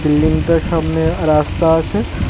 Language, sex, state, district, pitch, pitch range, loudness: Bengali, male, Tripura, West Tripura, 160 Hz, 155-165 Hz, -15 LUFS